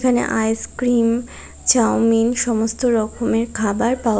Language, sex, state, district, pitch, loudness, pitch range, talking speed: Bengali, female, West Bengal, Kolkata, 230 Hz, -18 LUFS, 225-245 Hz, 100 wpm